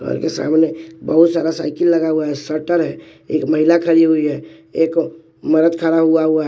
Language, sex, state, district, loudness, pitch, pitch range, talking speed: Hindi, male, Bihar, West Champaran, -16 LUFS, 160 Hz, 155-165 Hz, 205 wpm